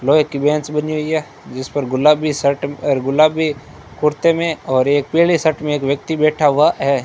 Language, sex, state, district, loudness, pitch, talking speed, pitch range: Hindi, male, Rajasthan, Bikaner, -16 LUFS, 150 Hz, 195 wpm, 140-155 Hz